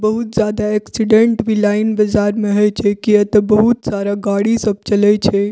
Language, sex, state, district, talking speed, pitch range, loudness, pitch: Maithili, female, Bihar, Purnia, 175 wpm, 205-220 Hz, -15 LUFS, 210 Hz